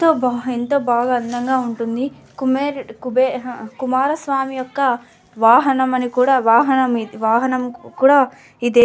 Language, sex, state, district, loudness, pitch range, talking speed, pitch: Telugu, female, Andhra Pradesh, Anantapur, -18 LUFS, 240-265 Hz, 130 wpm, 255 Hz